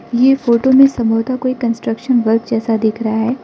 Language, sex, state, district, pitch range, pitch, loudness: Hindi, female, Arunachal Pradesh, Lower Dibang Valley, 225-255 Hz, 235 Hz, -14 LUFS